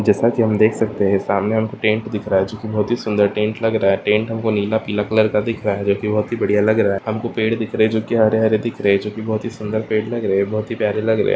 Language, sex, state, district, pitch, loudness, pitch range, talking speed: Hindi, male, Andhra Pradesh, Anantapur, 110 Hz, -18 LUFS, 105-110 Hz, 305 wpm